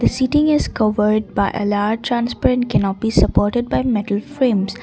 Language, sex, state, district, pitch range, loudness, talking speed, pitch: English, female, Assam, Kamrup Metropolitan, 210-245 Hz, -18 LUFS, 150 wpm, 225 Hz